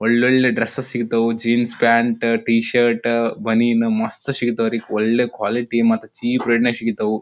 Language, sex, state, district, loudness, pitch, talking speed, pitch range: Kannada, male, Karnataka, Dharwad, -18 LUFS, 115 Hz, 150 wpm, 115-120 Hz